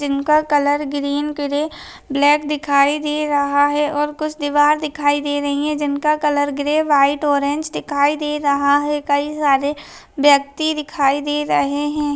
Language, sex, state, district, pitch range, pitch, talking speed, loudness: Hindi, female, Chhattisgarh, Raigarh, 285-300 Hz, 290 Hz, 160 wpm, -18 LUFS